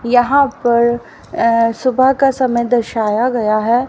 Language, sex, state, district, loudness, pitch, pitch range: Hindi, female, Haryana, Rohtak, -14 LUFS, 240 Hz, 230-255 Hz